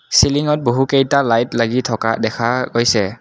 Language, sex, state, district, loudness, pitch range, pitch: Assamese, male, Assam, Kamrup Metropolitan, -16 LUFS, 115-135 Hz, 120 Hz